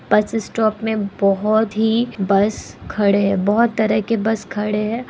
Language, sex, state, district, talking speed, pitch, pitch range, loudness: Hindi, female, Bihar, Kishanganj, 165 wpm, 215 Hz, 205-220 Hz, -18 LUFS